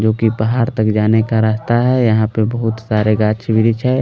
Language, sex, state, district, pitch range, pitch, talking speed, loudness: Hindi, male, Delhi, New Delhi, 110-115 Hz, 110 Hz, 225 wpm, -15 LUFS